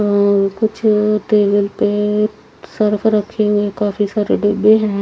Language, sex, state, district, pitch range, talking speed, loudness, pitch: Hindi, female, Haryana, Charkhi Dadri, 205-215 Hz, 120 wpm, -15 LUFS, 210 Hz